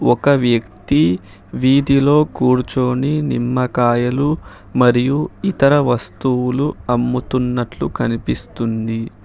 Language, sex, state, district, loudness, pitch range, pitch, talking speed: Telugu, male, Telangana, Hyderabad, -17 LUFS, 115-140 Hz, 125 Hz, 65 wpm